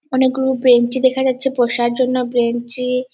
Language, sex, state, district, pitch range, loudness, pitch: Bengali, female, West Bengal, Purulia, 240-260 Hz, -16 LUFS, 255 Hz